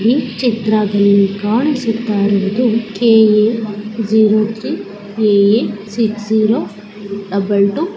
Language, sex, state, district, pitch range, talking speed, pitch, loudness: Kannada, female, Karnataka, Chamarajanagar, 205-225 Hz, 90 wpm, 215 Hz, -14 LUFS